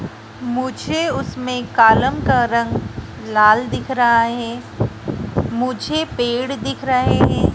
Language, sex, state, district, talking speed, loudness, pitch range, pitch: Hindi, female, Madhya Pradesh, Dhar, 110 wpm, -18 LUFS, 230-255 Hz, 240 Hz